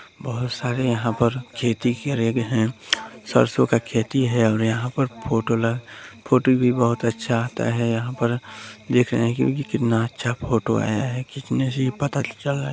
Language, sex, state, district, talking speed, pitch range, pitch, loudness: Hindi, male, Chhattisgarh, Balrampur, 200 wpm, 115-130 Hz, 120 Hz, -22 LUFS